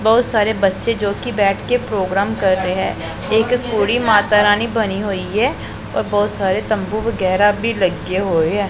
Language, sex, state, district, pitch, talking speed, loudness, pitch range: Punjabi, male, Punjab, Pathankot, 205 Hz, 185 wpm, -17 LUFS, 195-220 Hz